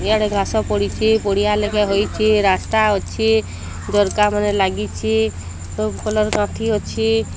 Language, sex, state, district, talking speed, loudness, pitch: Odia, female, Odisha, Sambalpur, 120 wpm, -18 LUFS, 195 Hz